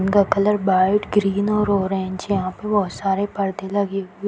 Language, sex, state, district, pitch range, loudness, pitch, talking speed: Hindi, female, Bihar, Samastipur, 190-205 Hz, -20 LUFS, 200 Hz, 195 wpm